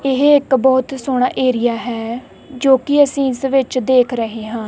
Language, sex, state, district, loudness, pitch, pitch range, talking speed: Punjabi, female, Punjab, Kapurthala, -16 LUFS, 260 Hz, 240-270 Hz, 180 wpm